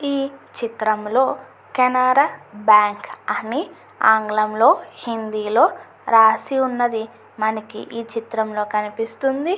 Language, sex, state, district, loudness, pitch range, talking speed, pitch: Telugu, female, Andhra Pradesh, Anantapur, -19 LUFS, 215-255 Hz, 105 wpm, 225 Hz